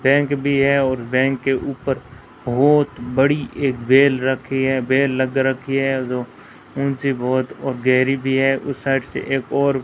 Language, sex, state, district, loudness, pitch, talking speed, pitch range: Hindi, female, Rajasthan, Bikaner, -19 LUFS, 135 Hz, 175 wpm, 130-140 Hz